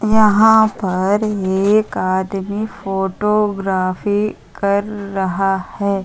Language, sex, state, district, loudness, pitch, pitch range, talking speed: Hindi, female, Uttar Pradesh, Hamirpur, -17 LUFS, 200 Hz, 190-210 Hz, 80 wpm